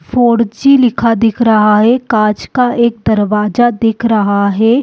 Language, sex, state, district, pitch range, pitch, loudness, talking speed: Hindi, female, Chhattisgarh, Balrampur, 215-240 Hz, 225 Hz, -11 LUFS, 150 wpm